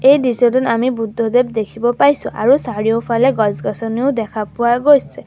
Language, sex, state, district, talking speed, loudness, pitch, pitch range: Assamese, female, Assam, Sonitpur, 135 wpm, -16 LUFS, 235 Hz, 225-260 Hz